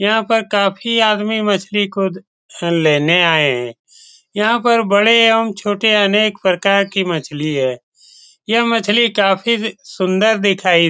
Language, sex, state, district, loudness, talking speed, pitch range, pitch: Hindi, male, Bihar, Saran, -15 LUFS, 140 wpm, 185-225 Hz, 205 Hz